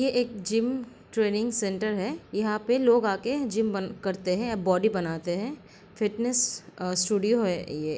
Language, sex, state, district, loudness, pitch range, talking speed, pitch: Hindi, female, Uttar Pradesh, Jalaun, -27 LUFS, 190-235 Hz, 190 wpm, 210 Hz